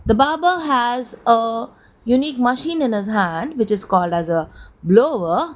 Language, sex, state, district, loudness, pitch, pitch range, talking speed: English, female, Gujarat, Valsad, -18 LUFS, 235 Hz, 210-275 Hz, 160 wpm